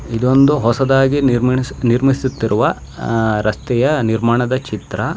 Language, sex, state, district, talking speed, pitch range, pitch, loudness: Kannada, male, Karnataka, Shimoga, 105 wpm, 115-135 Hz, 125 Hz, -16 LUFS